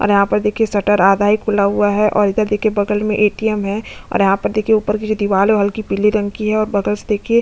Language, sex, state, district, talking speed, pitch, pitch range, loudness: Hindi, female, Chhattisgarh, Bastar, 300 wpm, 210 Hz, 205-215 Hz, -16 LUFS